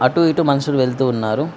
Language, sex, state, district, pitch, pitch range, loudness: Telugu, female, Telangana, Mahabubabad, 140 Hz, 125-160 Hz, -17 LUFS